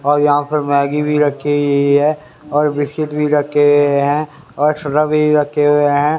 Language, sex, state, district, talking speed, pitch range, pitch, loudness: Hindi, male, Haryana, Rohtak, 175 wpm, 145-150 Hz, 145 Hz, -15 LUFS